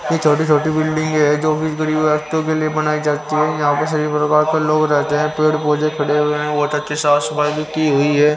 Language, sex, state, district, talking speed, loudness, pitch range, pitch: Hindi, male, Haryana, Rohtak, 215 wpm, -17 LUFS, 150-155 Hz, 150 Hz